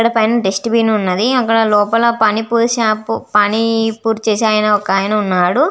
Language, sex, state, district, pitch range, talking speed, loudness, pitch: Telugu, female, Andhra Pradesh, Visakhapatnam, 210-230 Hz, 135 wpm, -14 LUFS, 220 Hz